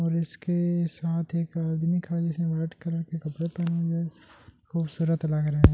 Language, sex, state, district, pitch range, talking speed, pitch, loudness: Hindi, male, Delhi, New Delhi, 160-170 Hz, 200 wpm, 165 Hz, -28 LUFS